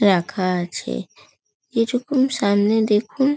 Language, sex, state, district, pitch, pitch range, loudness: Bengali, female, West Bengal, North 24 Parganas, 210 Hz, 185-250 Hz, -20 LUFS